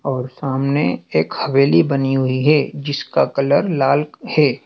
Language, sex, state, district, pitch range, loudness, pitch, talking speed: Hindi, male, Madhya Pradesh, Dhar, 135-150 Hz, -17 LUFS, 140 Hz, 140 wpm